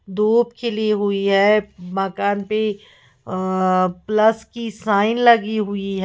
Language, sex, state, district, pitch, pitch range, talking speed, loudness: Hindi, female, Uttar Pradesh, Lalitpur, 205 Hz, 195-220 Hz, 130 wpm, -19 LUFS